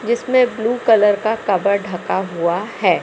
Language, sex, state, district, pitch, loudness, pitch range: Hindi, female, Madhya Pradesh, Katni, 210 Hz, -17 LUFS, 190-225 Hz